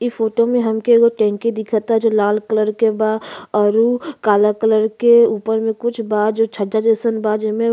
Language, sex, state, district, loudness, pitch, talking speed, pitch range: Bhojpuri, female, Uttar Pradesh, Ghazipur, -16 LUFS, 220 Hz, 210 wpm, 215-230 Hz